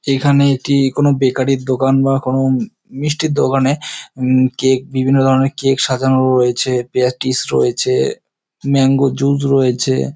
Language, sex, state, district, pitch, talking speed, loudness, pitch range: Bengali, male, West Bengal, North 24 Parganas, 135 Hz, 130 wpm, -15 LUFS, 130-140 Hz